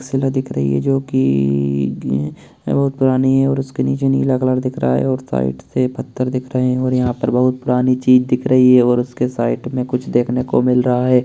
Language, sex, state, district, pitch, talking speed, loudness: Hindi, male, Bihar, Begusarai, 125 Hz, 235 wpm, -17 LUFS